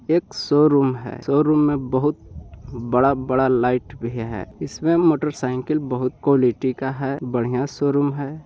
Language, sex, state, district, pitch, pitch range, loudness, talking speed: Hindi, male, Bihar, Jahanabad, 135 Hz, 125-145 Hz, -20 LUFS, 155 wpm